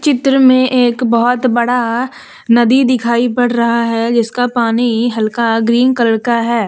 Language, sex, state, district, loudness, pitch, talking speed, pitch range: Hindi, female, Jharkhand, Deoghar, -13 LUFS, 240 Hz, 155 wpm, 235-250 Hz